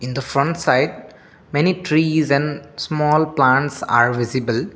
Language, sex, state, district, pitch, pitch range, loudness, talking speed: English, male, Assam, Kamrup Metropolitan, 140 Hz, 125-155 Hz, -18 LUFS, 150 wpm